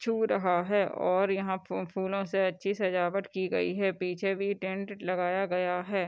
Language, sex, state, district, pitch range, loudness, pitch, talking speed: Hindi, female, Bihar, Madhepura, 185-195 Hz, -30 LUFS, 190 Hz, 175 wpm